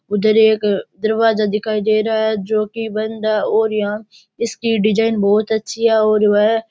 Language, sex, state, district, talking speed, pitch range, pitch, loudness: Rajasthani, male, Rajasthan, Churu, 190 wpm, 210-220 Hz, 215 Hz, -16 LUFS